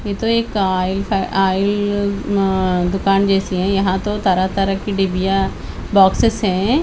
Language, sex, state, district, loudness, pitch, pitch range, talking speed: Hindi, female, Haryana, Charkhi Dadri, -17 LUFS, 195 Hz, 190-205 Hz, 165 wpm